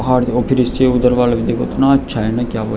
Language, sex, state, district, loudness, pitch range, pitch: Hindi, male, Uttarakhand, Tehri Garhwal, -15 LUFS, 115-125 Hz, 125 Hz